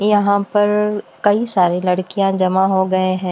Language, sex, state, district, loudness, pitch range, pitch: Hindi, female, Bihar, West Champaran, -16 LUFS, 185-205 Hz, 195 Hz